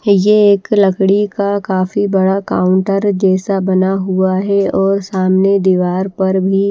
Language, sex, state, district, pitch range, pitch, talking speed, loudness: Hindi, female, Himachal Pradesh, Shimla, 190-200 Hz, 195 Hz, 145 wpm, -13 LUFS